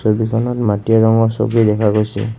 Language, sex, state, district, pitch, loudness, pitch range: Assamese, male, Assam, Kamrup Metropolitan, 110 Hz, -15 LUFS, 105-115 Hz